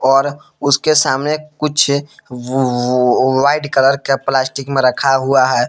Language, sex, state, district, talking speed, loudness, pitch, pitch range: Hindi, male, Jharkhand, Palamu, 150 wpm, -15 LUFS, 135 Hz, 130-145 Hz